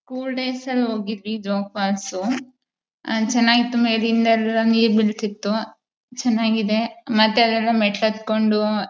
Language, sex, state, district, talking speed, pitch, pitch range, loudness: Kannada, female, Karnataka, Mysore, 110 wpm, 225 Hz, 215-235 Hz, -20 LUFS